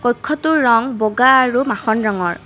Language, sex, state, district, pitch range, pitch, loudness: Assamese, female, Assam, Kamrup Metropolitan, 220-260 Hz, 245 Hz, -15 LUFS